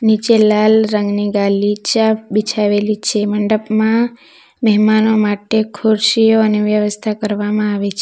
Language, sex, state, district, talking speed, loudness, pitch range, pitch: Gujarati, female, Gujarat, Valsad, 110 wpm, -14 LUFS, 210-220 Hz, 215 Hz